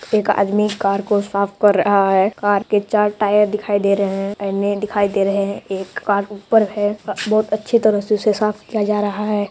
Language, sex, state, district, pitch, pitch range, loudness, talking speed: Hindi, female, Bihar, Purnia, 205 Hz, 200-210 Hz, -18 LUFS, 220 wpm